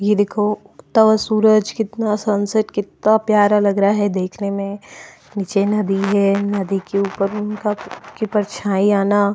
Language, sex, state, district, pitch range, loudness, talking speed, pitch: Hindi, female, Goa, North and South Goa, 200-215 Hz, -18 LUFS, 150 wpm, 205 Hz